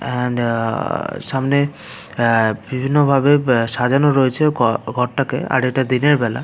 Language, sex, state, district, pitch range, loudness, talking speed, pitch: Bengali, male, West Bengal, Paschim Medinipur, 120-140 Hz, -17 LUFS, 120 wpm, 130 Hz